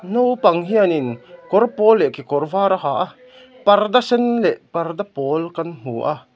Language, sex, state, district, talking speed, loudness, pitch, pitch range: Mizo, male, Mizoram, Aizawl, 180 wpm, -18 LUFS, 195 Hz, 160-235 Hz